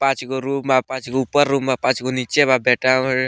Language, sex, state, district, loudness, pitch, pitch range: Bhojpuri, male, Bihar, Muzaffarpur, -18 LUFS, 130 Hz, 130-135 Hz